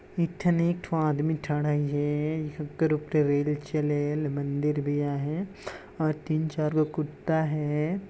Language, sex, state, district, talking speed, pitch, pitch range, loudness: Chhattisgarhi, male, Chhattisgarh, Jashpur, 155 wpm, 150 Hz, 145-160 Hz, -28 LUFS